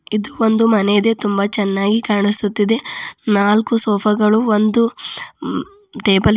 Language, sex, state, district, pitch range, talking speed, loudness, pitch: Kannada, female, Karnataka, Bidar, 205-225 Hz, 120 wpm, -16 LUFS, 215 Hz